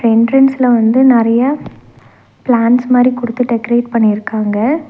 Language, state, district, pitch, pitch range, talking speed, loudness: Tamil, Tamil Nadu, Nilgiris, 240 Hz, 230-255 Hz, 100 wpm, -12 LUFS